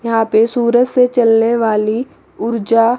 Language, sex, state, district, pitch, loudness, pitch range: Hindi, female, Chandigarh, Chandigarh, 230 Hz, -14 LUFS, 225-240 Hz